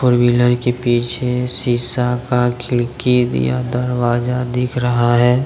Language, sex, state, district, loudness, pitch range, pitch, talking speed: Hindi, male, Jharkhand, Deoghar, -17 LUFS, 120-125 Hz, 125 Hz, 145 wpm